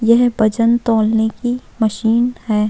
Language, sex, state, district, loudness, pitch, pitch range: Hindi, female, Uttarakhand, Tehri Garhwal, -16 LUFS, 230 Hz, 220-240 Hz